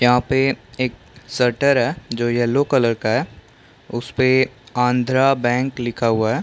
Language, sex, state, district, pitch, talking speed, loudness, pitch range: Hindi, male, Chhattisgarh, Bastar, 125 Hz, 150 wpm, -19 LUFS, 120-130 Hz